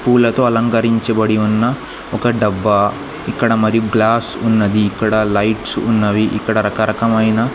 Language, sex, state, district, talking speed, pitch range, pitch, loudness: Telugu, male, Andhra Pradesh, Sri Satya Sai, 110 wpm, 110-115 Hz, 110 Hz, -15 LUFS